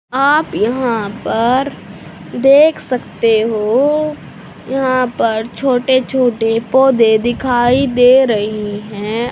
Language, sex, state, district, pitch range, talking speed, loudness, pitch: Hindi, female, Haryana, Charkhi Dadri, 225-265 Hz, 95 wpm, -14 LUFS, 245 Hz